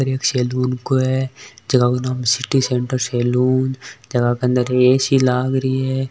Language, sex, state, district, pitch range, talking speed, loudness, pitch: Hindi, male, Rajasthan, Nagaur, 125-130 Hz, 135 wpm, -18 LUFS, 130 Hz